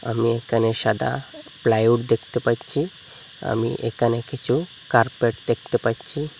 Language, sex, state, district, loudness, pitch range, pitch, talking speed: Bengali, male, Assam, Hailakandi, -23 LUFS, 115-125 Hz, 115 Hz, 115 wpm